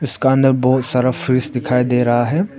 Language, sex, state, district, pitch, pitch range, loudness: Hindi, male, Arunachal Pradesh, Papum Pare, 130 Hz, 125-135 Hz, -16 LUFS